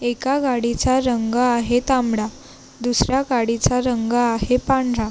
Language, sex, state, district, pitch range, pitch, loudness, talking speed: Marathi, female, Maharashtra, Sindhudurg, 235-255 Hz, 245 Hz, -20 LUFS, 115 wpm